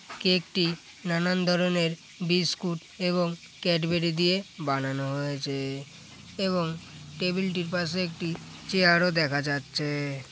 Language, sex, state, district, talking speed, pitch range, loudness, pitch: Bengali, male, West Bengal, Paschim Medinipur, 110 wpm, 150-180 Hz, -27 LUFS, 170 Hz